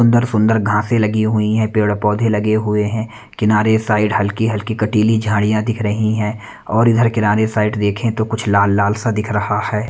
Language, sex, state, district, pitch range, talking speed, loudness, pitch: Hindi, male, Punjab, Kapurthala, 105-110 Hz, 175 wpm, -16 LUFS, 110 Hz